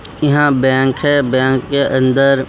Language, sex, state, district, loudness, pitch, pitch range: Hindi, male, Bihar, Katihar, -13 LUFS, 135 Hz, 130-145 Hz